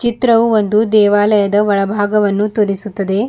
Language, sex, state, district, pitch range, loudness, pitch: Kannada, female, Karnataka, Bidar, 205-215 Hz, -13 LUFS, 210 Hz